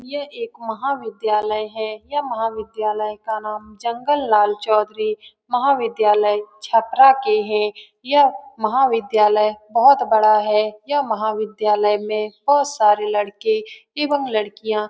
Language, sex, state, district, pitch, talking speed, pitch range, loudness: Hindi, female, Bihar, Saran, 215 Hz, 115 wpm, 210-270 Hz, -19 LUFS